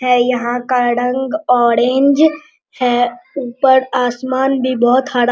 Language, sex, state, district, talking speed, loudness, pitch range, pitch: Hindi, male, Bihar, Araria, 135 wpm, -14 LUFS, 245-265 Hz, 250 Hz